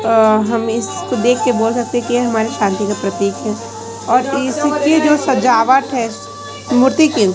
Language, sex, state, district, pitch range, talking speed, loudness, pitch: Hindi, female, Chhattisgarh, Raipur, 215-260 Hz, 170 wpm, -15 LUFS, 235 Hz